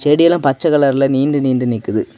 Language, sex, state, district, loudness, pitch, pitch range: Tamil, male, Tamil Nadu, Kanyakumari, -14 LUFS, 140 Hz, 135-150 Hz